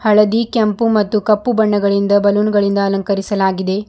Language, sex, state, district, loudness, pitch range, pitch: Kannada, female, Karnataka, Bidar, -15 LUFS, 200-215 Hz, 205 Hz